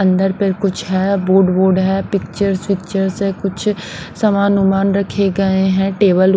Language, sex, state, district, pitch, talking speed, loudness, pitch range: Hindi, female, Punjab, Pathankot, 195 Hz, 160 wpm, -16 LUFS, 190-195 Hz